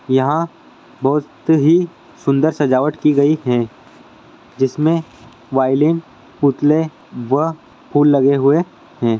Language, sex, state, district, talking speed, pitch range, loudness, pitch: Hindi, male, Andhra Pradesh, Guntur, 110 wpm, 130-155 Hz, -16 LUFS, 145 Hz